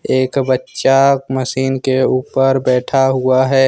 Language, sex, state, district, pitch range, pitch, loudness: Hindi, male, Jharkhand, Ranchi, 130-135 Hz, 130 Hz, -15 LUFS